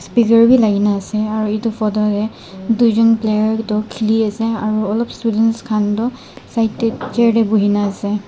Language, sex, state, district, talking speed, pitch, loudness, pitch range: Nagamese, male, Nagaland, Dimapur, 175 wpm, 220 Hz, -16 LUFS, 210-225 Hz